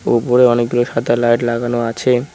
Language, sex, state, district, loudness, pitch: Bengali, male, West Bengal, Cooch Behar, -15 LUFS, 120 Hz